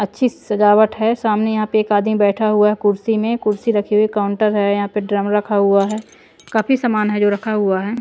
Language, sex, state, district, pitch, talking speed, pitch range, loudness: Hindi, female, Punjab, Pathankot, 210 Hz, 230 wpm, 205-220 Hz, -17 LUFS